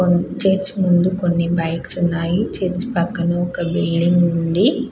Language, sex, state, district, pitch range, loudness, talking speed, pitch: Telugu, female, Andhra Pradesh, Krishna, 170-185 Hz, -18 LUFS, 135 wpm, 175 Hz